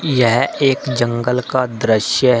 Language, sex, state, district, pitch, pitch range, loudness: Hindi, male, Uttar Pradesh, Shamli, 125 Hz, 120-130 Hz, -16 LUFS